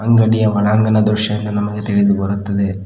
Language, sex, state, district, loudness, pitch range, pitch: Kannada, male, Karnataka, Koppal, -15 LUFS, 100-110 Hz, 105 Hz